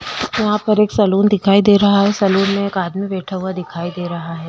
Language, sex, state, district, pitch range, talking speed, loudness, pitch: Hindi, female, Uttar Pradesh, Budaun, 185-205 Hz, 240 wpm, -16 LUFS, 195 Hz